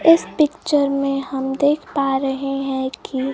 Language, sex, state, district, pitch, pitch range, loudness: Hindi, female, Bihar, Kaimur, 275 Hz, 270-290 Hz, -20 LUFS